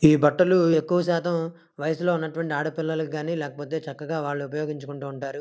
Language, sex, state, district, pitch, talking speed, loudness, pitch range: Telugu, male, Andhra Pradesh, Krishna, 160 Hz, 145 wpm, -25 LUFS, 145-165 Hz